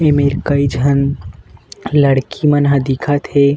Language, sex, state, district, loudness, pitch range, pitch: Chhattisgarhi, male, Chhattisgarh, Bilaspur, -14 LUFS, 140-145 Hz, 140 Hz